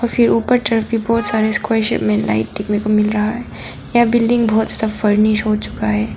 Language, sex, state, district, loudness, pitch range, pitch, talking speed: Hindi, female, Arunachal Pradesh, Papum Pare, -16 LUFS, 210-230 Hz, 215 Hz, 215 wpm